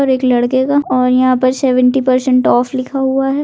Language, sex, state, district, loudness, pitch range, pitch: Hindi, female, Maharashtra, Aurangabad, -13 LUFS, 255-265 Hz, 255 Hz